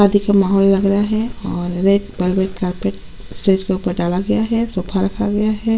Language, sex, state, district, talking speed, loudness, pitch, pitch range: Hindi, female, Chhattisgarh, Sukma, 230 wpm, -17 LUFS, 195 Hz, 185-210 Hz